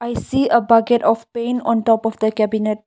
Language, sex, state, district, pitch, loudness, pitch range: English, female, Nagaland, Kohima, 225 Hz, -17 LUFS, 220-235 Hz